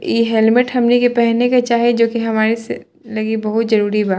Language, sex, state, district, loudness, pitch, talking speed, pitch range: Bhojpuri, female, Bihar, Saran, -15 LUFS, 230 Hz, 215 wpm, 220-240 Hz